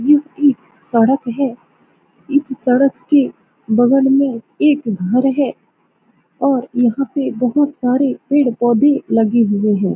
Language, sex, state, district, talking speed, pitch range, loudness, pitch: Hindi, female, Bihar, Saran, 140 wpm, 240-280 Hz, -15 LUFS, 265 Hz